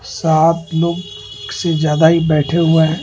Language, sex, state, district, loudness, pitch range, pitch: Hindi, male, Delhi, New Delhi, -14 LUFS, 160-170 Hz, 165 Hz